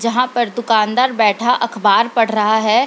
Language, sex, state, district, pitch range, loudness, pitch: Hindi, female, Bihar, Lakhisarai, 215-240 Hz, -15 LUFS, 230 Hz